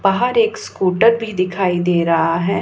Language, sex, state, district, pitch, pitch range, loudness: Hindi, female, Punjab, Pathankot, 190 Hz, 175-230 Hz, -16 LUFS